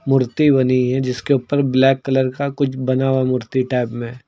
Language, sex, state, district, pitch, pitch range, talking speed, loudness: Hindi, male, Uttar Pradesh, Lucknow, 130 Hz, 125-135 Hz, 195 wpm, -18 LUFS